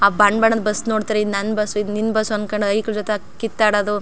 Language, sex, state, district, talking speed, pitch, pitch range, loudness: Kannada, female, Karnataka, Chamarajanagar, 240 wpm, 210 Hz, 210-220 Hz, -19 LUFS